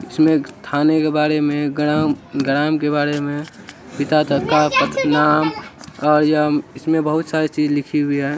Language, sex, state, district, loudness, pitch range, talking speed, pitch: Hindi, male, Bihar, Saharsa, -18 LUFS, 145-155 Hz, 150 wpm, 150 Hz